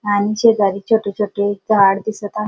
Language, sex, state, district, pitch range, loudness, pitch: Marathi, female, Maharashtra, Dhule, 200-215 Hz, -16 LUFS, 205 Hz